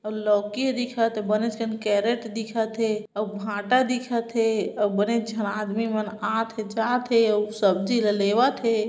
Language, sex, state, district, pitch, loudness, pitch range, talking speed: Chhattisgarhi, female, Chhattisgarh, Bilaspur, 220 Hz, -24 LUFS, 210-230 Hz, 175 wpm